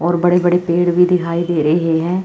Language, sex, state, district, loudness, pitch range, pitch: Hindi, female, Chandigarh, Chandigarh, -15 LUFS, 170-175 Hz, 175 Hz